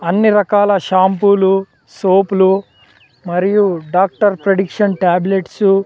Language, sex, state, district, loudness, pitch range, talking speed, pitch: Telugu, male, Andhra Pradesh, Sri Satya Sai, -14 LUFS, 180-200 Hz, 90 wpm, 195 Hz